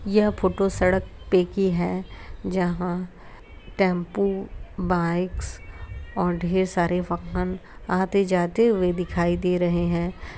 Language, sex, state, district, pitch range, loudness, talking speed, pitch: Hindi, female, Uttar Pradesh, Jyotiba Phule Nagar, 175-190 Hz, -24 LUFS, 110 wpm, 180 Hz